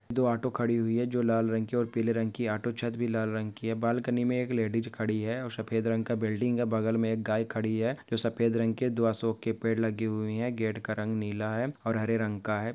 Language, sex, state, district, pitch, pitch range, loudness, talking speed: Hindi, male, Maharashtra, Nagpur, 115 Hz, 110-120 Hz, -30 LUFS, 280 wpm